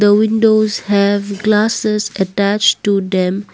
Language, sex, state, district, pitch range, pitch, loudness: English, female, Assam, Kamrup Metropolitan, 200-215 Hz, 205 Hz, -14 LUFS